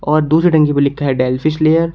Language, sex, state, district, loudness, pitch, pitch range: Hindi, male, Uttar Pradesh, Shamli, -14 LUFS, 155 Hz, 140-160 Hz